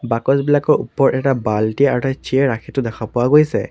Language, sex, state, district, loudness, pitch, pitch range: Assamese, male, Assam, Sonitpur, -17 LUFS, 135 Hz, 120-140 Hz